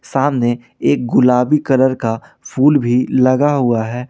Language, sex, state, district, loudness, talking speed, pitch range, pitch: Hindi, male, Jharkhand, Ranchi, -15 LUFS, 145 wpm, 120-140 Hz, 130 Hz